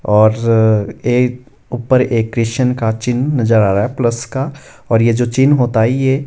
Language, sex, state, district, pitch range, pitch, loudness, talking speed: Hindi, male, Himachal Pradesh, Shimla, 110-130 Hz, 120 Hz, -14 LUFS, 190 wpm